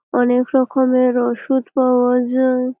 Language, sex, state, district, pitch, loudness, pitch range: Bengali, female, West Bengal, Malda, 255 Hz, -16 LUFS, 245-260 Hz